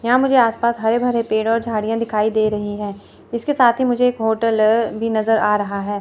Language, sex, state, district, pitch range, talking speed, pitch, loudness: Hindi, female, Chandigarh, Chandigarh, 215-235 Hz, 250 wpm, 225 Hz, -18 LUFS